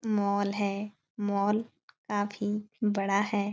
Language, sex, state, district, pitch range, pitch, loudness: Hindi, female, Bihar, Supaul, 200-210 Hz, 205 Hz, -30 LUFS